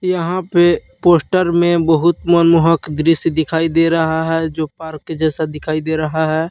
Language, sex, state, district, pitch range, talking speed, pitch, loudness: Hindi, male, Jharkhand, Palamu, 160-170 Hz, 175 wpm, 165 Hz, -15 LUFS